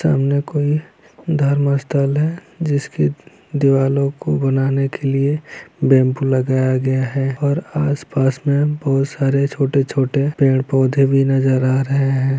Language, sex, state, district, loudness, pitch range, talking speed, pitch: Hindi, male, Bihar, Lakhisarai, -17 LUFS, 135-145 Hz, 130 wpm, 135 Hz